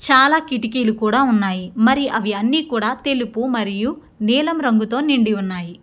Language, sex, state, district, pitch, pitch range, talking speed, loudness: Telugu, female, Andhra Pradesh, Guntur, 240 Hz, 215-265 Hz, 135 wpm, -18 LUFS